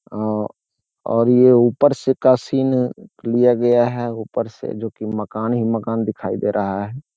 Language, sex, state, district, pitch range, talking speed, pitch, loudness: Hindi, male, Bihar, Jamui, 110-125 Hz, 175 wpm, 115 Hz, -18 LUFS